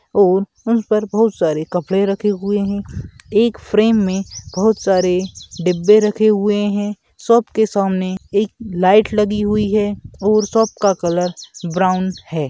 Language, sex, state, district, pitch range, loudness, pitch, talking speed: Bhojpuri, male, Uttar Pradesh, Gorakhpur, 185-215 Hz, -17 LUFS, 205 Hz, 155 wpm